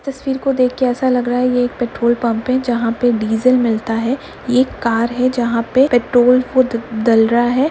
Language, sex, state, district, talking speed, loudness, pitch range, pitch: Hindi, female, Uttar Pradesh, Budaun, 235 wpm, -16 LUFS, 230-255 Hz, 245 Hz